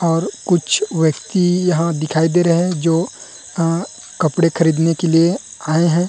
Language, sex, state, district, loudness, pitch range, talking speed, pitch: Chhattisgarhi, male, Chhattisgarh, Rajnandgaon, -17 LUFS, 165-175 Hz, 160 wpm, 170 Hz